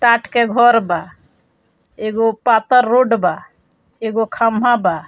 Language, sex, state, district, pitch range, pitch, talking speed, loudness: Bhojpuri, female, Bihar, Muzaffarpur, 225-240 Hz, 230 Hz, 130 wpm, -15 LUFS